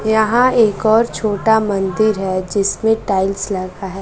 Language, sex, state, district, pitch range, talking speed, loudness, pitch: Hindi, female, Bihar, West Champaran, 195-220 Hz, 150 wpm, -16 LUFS, 210 Hz